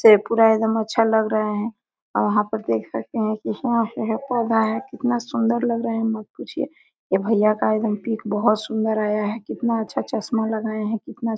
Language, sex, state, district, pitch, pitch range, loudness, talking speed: Hindi, female, Jharkhand, Sahebganj, 220 Hz, 215-230 Hz, -22 LUFS, 200 wpm